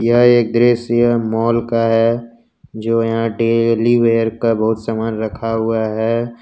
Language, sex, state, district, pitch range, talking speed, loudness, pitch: Hindi, male, Jharkhand, Ranchi, 115-120 Hz, 160 wpm, -16 LUFS, 115 Hz